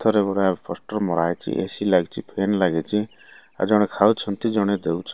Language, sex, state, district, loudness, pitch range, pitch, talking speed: Odia, male, Odisha, Malkangiri, -22 LUFS, 95-105 Hz, 100 Hz, 150 wpm